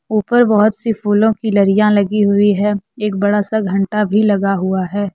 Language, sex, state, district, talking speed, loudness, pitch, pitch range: Hindi, female, Jharkhand, Deoghar, 200 wpm, -15 LUFS, 205 Hz, 200-215 Hz